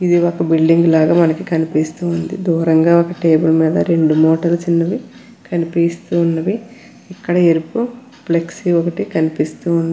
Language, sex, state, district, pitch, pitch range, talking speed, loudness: Telugu, female, Andhra Pradesh, Krishna, 170 Hz, 160-180 Hz, 140 wpm, -15 LUFS